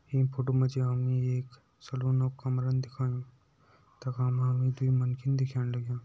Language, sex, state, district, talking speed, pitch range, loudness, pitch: Garhwali, male, Uttarakhand, Uttarkashi, 150 wpm, 125-130 Hz, -30 LUFS, 130 Hz